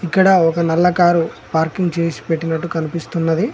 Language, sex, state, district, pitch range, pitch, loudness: Telugu, male, Telangana, Mahabubabad, 165-180 Hz, 170 Hz, -17 LUFS